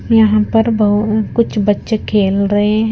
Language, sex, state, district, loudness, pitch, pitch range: Hindi, female, Punjab, Kapurthala, -14 LUFS, 215 Hz, 205-220 Hz